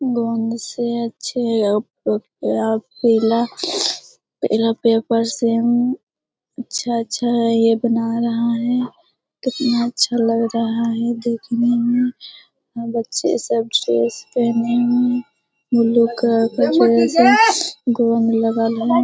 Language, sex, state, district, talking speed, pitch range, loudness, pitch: Hindi, female, Bihar, Lakhisarai, 90 wpm, 230-240 Hz, -18 LUFS, 235 Hz